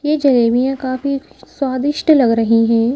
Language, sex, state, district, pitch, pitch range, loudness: Hindi, female, Madhya Pradesh, Bhopal, 260 Hz, 235-280 Hz, -15 LUFS